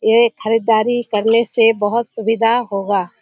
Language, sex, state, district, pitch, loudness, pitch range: Hindi, female, Bihar, Kishanganj, 225 Hz, -16 LUFS, 215-235 Hz